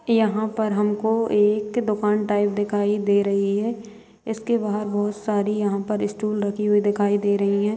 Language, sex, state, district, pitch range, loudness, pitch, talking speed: Hindi, female, Bihar, Araria, 205-215 Hz, -22 LUFS, 210 Hz, 175 wpm